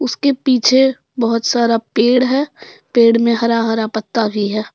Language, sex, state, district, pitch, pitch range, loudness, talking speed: Hindi, female, Jharkhand, Deoghar, 235 Hz, 225-255 Hz, -15 LUFS, 165 wpm